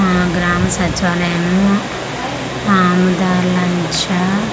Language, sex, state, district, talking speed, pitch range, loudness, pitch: Telugu, female, Andhra Pradesh, Manyam, 55 wpm, 175-185 Hz, -15 LUFS, 180 Hz